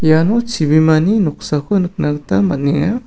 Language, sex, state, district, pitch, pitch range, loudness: Garo, male, Meghalaya, South Garo Hills, 160 Hz, 150-200 Hz, -15 LUFS